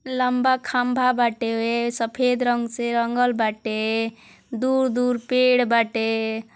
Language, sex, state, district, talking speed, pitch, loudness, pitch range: Hindi, female, Uttar Pradesh, Ghazipur, 120 wpm, 240 Hz, -22 LUFS, 225-250 Hz